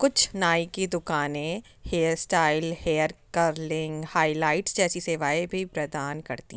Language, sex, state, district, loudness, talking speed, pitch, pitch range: Hindi, female, Uttar Pradesh, Jyotiba Phule Nagar, -26 LUFS, 135 wpm, 165 Hz, 155-175 Hz